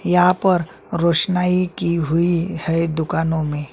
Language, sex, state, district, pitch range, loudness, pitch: Hindi, male, Chhattisgarh, Sukma, 165-180 Hz, -18 LUFS, 170 Hz